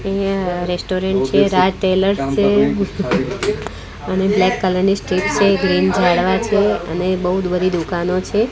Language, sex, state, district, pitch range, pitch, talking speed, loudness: Gujarati, female, Gujarat, Gandhinagar, 180-195 Hz, 185 Hz, 125 wpm, -17 LUFS